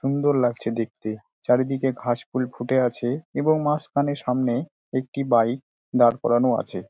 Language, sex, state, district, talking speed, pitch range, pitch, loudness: Bengali, male, West Bengal, Dakshin Dinajpur, 130 wpm, 120-140 Hz, 125 Hz, -23 LUFS